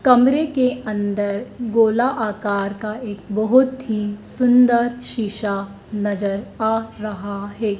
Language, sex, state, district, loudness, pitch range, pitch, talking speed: Hindi, female, Madhya Pradesh, Dhar, -20 LUFS, 205-245 Hz, 215 Hz, 115 wpm